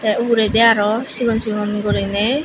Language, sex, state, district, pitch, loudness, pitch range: Chakma, female, Tripura, Unakoti, 220 Hz, -16 LUFS, 210-230 Hz